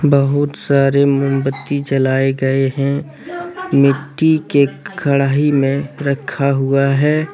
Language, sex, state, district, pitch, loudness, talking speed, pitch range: Hindi, male, Jharkhand, Deoghar, 140 Hz, -16 LUFS, 105 wpm, 135-145 Hz